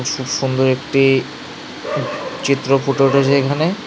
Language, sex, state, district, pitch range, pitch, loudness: Bengali, male, West Bengal, Cooch Behar, 135-140 Hz, 135 Hz, -17 LUFS